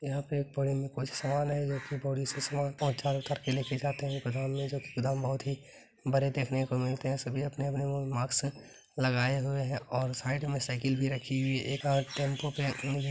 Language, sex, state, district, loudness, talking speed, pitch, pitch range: Maithili, male, Bihar, Begusarai, -33 LUFS, 220 wpm, 135 Hz, 130-140 Hz